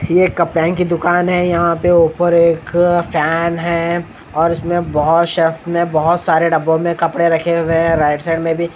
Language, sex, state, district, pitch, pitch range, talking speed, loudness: Hindi, male, Bihar, Katihar, 170 Hz, 165-170 Hz, 185 wpm, -15 LUFS